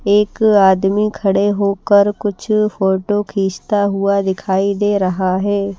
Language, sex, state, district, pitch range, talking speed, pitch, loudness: Hindi, female, Himachal Pradesh, Shimla, 195-205 Hz, 125 wpm, 200 Hz, -15 LUFS